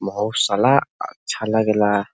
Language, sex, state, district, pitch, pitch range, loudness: Bhojpuri, male, Uttar Pradesh, Ghazipur, 105 Hz, 105-110 Hz, -19 LUFS